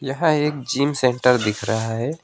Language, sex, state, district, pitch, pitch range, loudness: Hindi, male, West Bengal, Alipurduar, 130 Hz, 115-150 Hz, -20 LUFS